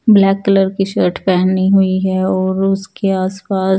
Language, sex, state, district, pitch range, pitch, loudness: Hindi, female, Chandigarh, Chandigarh, 190-195 Hz, 190 Hz, -14 LUFS